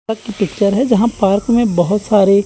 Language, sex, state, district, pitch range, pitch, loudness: Hindi, male, Chandigarh, Chandigarh, 200-225 Hz, 210 Hz, -14 LUFS